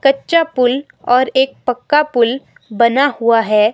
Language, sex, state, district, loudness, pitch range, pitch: Hindi, female, Himachal Pradesh, Shimla, -14 LUFS, 235-275 Hz, 250 Hz